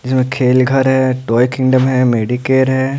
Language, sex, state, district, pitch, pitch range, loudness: Hindi, male, Bihar, Patna, 130 Hz, 125-130 Hz, -13 LUFS